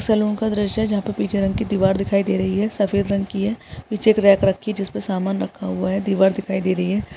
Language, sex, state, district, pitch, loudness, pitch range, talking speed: Hindi, female, Jharkhand, Sahebganj, 200 Hz, -20 LUFS, 195-210 Hz, 270 wpm